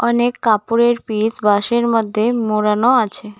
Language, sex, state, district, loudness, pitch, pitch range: Bengali, female, West Bengal, Cooch Behar, -16 LUFS, 225 Hz, 210-235 Hz